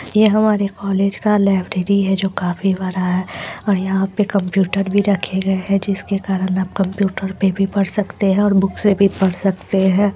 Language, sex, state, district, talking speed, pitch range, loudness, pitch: Hindi, female, Bihar, Lakhisarai, 200 wpm, 190-200 Hz, -17 LUFS, 195 Hz